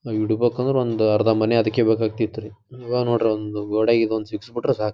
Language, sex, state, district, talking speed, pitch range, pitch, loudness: Kannada, male, Karnataka, Dharwad, 170 wpm, 110-120 Hz, 110 Hz, -21 LUFS